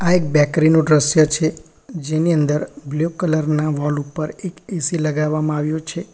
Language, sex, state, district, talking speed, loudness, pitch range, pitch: Gujarati, male, Gujarat, Valsad, 175 wpm, -18 LUFS, 150-165 Hz, 155 Hz